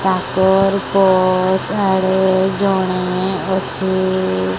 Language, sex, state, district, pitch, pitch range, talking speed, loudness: Odia, male, Odisha, Sambalpur, 190 Hz, 185-190 Hz, 65 wpm, -16 LUFS